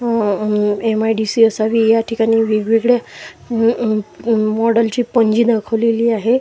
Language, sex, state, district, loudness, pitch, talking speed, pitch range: Marathi, male, Maharashtra, Washim, -16 LUFS, 225 Hz, 130 wpm, 220-230 Hz